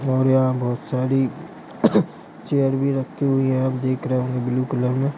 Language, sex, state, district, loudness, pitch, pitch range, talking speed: Hindi, male, Bihar, Gopalganj, -21 LUFS, 130 Hz, 130-135 Hz, 185 wpm